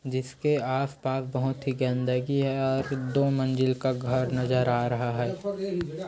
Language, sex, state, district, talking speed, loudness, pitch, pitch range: Hindi, male, Chhattisgarh, Korba, 185 wpm, -27 LUFS, 130 Hz, 125-140 Hz